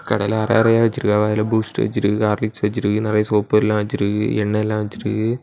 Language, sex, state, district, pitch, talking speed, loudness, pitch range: Tamil, male, Tamil Nadu, Kanyakumari, 105 Hz, 165 wpm, -19 LUFS, 105-110 Hz